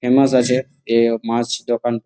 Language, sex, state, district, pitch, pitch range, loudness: Bengali, male, West Bengal, Jalpaiguri, 120 Hz, 115-125 Hz, -18 LUFS